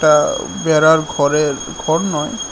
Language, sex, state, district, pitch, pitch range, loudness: Bengali, male, Tripura, West Tripura, 155 Hz, 150-160 Hz, -16 LUFS